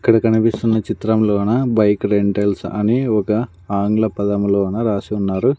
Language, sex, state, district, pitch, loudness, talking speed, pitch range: Telugu, male, Andhra Pradesh, Sri Satya Sai, 105 Hz, -17 LUFS, 120 wpm, 100-110 Hz